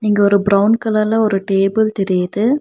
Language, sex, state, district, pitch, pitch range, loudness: Tamil, female, Tamil Nadu, Nilgiris, 205 Hz, 195-220 Hz, -15 LUFS